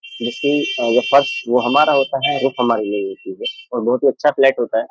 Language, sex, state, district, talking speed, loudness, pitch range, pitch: Hindi, male, Uttar Pradesh, Jyotiba Phule Nagar, 230 wpm, -17 LUFS, 120-145 Hz, 135 Hz